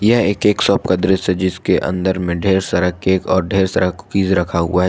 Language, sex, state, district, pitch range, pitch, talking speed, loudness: Hindi, male, Jharkhand, Ranchi, 90-95 Hz, 95 Hz, 245 wpm, -16 LUFS